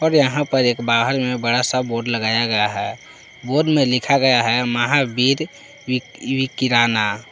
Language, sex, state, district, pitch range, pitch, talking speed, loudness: Hindi, male, Jharkhand, Palamu, 120-135 Hz, 125 Hz, 165 wpm, -18 LUFS